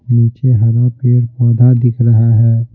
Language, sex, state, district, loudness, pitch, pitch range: Hindi, male, Bihar, Patna, -11 LUFS, 120 Hz, 115-125 Hz